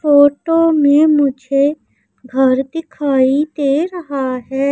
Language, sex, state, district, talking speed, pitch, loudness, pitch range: Hindi, female, Madhya Pradesh, Umaria, 100 wpm, 285 Hz, -15 LUFS, 270-305 Hz